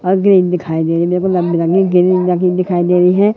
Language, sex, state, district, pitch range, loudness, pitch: Hindi, male, Madhya Pradesh, Katni, 175-185 Hz, -13 LUFS, 180 Hz